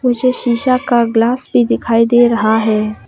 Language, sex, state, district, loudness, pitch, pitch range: Hindi, female, Arunachal Pradesh, Papum Pare, -13 LUFS, 235 Hz, 220-250 Hz